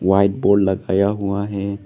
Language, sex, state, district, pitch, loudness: Hindi, male, Arunachal Pradesh, Lower Dibang Valley, 100 Hz, -18 LUFS